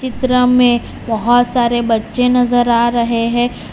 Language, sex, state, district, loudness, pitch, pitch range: Hindi, male, Gujarat, Valsad, -14 LUFS, 240 Hz, 235-250 Hz